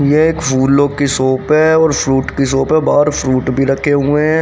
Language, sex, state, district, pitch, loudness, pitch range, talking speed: Hindi, male, Haryana, Rohtak, 140 Hz, -13 LUFS, 135-155 Hz, 230 wpm